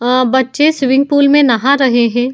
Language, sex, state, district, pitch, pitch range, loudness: Hindi, female, Uttar Pradesh, Etah, 260 Hz, 250-280 Hz, -11 LUFS